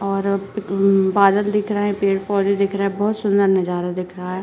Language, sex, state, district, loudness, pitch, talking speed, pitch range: Hindi, female, Uttarakhand, Uttarkashi, -19 LUFS, 195 Hz, 230 wpm, 195-200 Hz